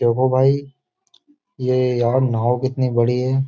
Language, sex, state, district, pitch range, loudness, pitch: Hindi, male, Uttar Pradesh, Jyotiba Phule Nagar, 125-140 Hz, -19 LUFS, 130 Hz